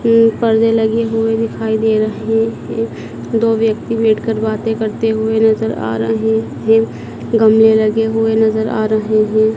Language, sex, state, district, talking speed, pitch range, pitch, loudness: Hindi, male, Madhya Pradesh, Dhar, 170 wpm, 215-225 Hz, 220 Hz, -15 LUFS